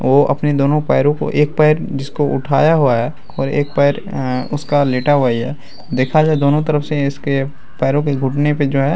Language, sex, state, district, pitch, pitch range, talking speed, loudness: Hindi, male, Bihar, Araria, 145 Hz, 135-150 Hz, 220 wpm, -16 LUFS